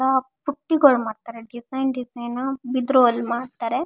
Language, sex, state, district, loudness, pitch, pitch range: Kannada, female, Karnataka, Shimoga, -22 LUFS, 255 Hz, 240-265 Hz